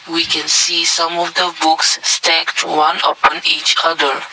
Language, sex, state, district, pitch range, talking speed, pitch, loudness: English, male, Assam, Kamrup Metropolitan, 160-170 Hz, 165 wpm, 165 Hz, -13 LUFS